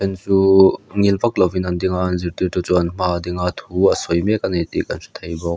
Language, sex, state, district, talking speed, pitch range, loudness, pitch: Mizo, male, Mizoram, Aizawl, 290 wpm, 90-95 Hz, -18 LUFS, 90 Hz